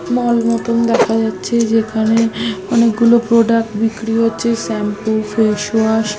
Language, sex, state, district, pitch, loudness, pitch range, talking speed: Bengali, female, West Bengal, Malda, 225 Hz, -15 LUFS, 220-230 Hz, 125 wpm